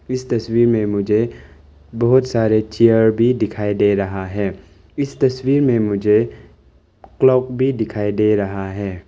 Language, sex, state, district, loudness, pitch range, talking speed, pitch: Hindi, male, Arunachal Pradesh, Longding, -17 LUFS, 100-120 Hz, 145 wpm, 110 Hz